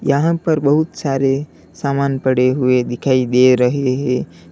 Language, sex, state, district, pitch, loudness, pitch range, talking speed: Hindi, male, Uttar Pradesh, Lalitpur, 135 Hz, -16 LUFS, 125-140 Hz, 145 wpm